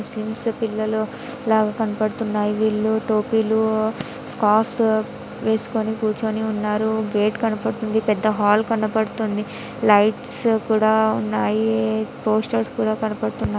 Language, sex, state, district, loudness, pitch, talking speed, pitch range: Telugu, female, Andhra Pradesh, Anantapur, -21 LUFS, 220 Hz, 95 wpm, 210-220 Hz